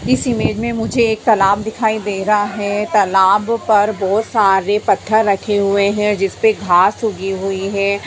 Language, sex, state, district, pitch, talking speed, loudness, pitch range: Hindi, female, Bihar, Sitamarhi, 205 Hz, 170 wpm, -15 LUFS, 195-220 Hz